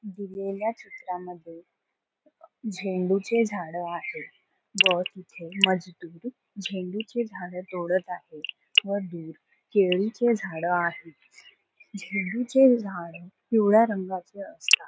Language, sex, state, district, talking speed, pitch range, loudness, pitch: Marathi, female, Maharashtra, Solapur, 95 wpm, 180-215 Hz, -26 LUFS, 195 Hz